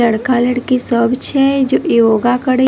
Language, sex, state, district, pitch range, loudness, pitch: Maithili, female, Bihar, Madhepura, 235-260 Hz, -13 LUFS, 250 Hz